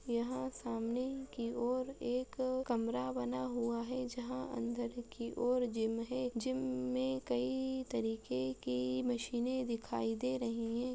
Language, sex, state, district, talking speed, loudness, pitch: Hindi, female, Bihar, Madhepura, 140 wpm, -38 LUFS, 235 Hz